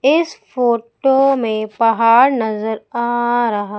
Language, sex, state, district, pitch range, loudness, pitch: Hindi, female, Madhya Pradesh, Umaria, 220-265 Hz, -16 LUFS, 235 Hz